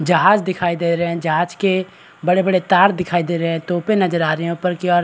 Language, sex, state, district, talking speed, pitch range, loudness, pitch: Hindi, male, Bihar, Araria, 225 wpm, 170-185 Hz, -17 LUFS, 175 Hz